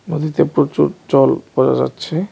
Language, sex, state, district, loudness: Bengali, male, Tripura, West Tripura, -16 LUFS